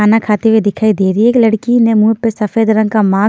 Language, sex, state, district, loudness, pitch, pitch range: Hindi, female, Himachal Pradesh, Shimla, -12 LUFS, 220 Hz, 210-225 Hz